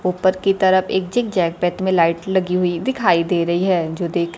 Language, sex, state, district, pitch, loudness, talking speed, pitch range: Hindi, female, Bihar, Kaimur, 180 Hz, -18 LUFS, 205 wpm, 175-190 Hz